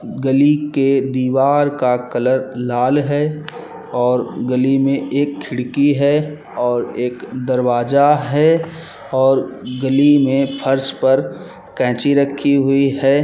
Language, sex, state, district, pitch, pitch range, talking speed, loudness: Hindi, male, Chhattisgarh, Bilaspur, 135 Hz, 130-145 Hz, 120 wpm, -16 LUFS